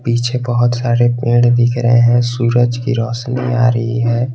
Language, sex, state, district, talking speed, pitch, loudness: Hindi, male, Jharkhand, Garhwa, 180 wpm, 120 Hz, -14 LUFS